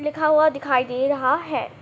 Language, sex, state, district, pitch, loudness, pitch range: Hindi, female, Jharkhand, Sahebganj, 285 Hz, -21 LUFS, 260-305 Hz